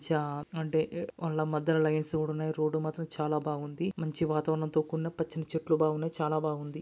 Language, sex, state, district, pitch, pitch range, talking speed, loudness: Telugu, male, Andhra Pradesh, Chittoor, 155 Hz, 155-160 Hz, 175 wpm, -32 LUFS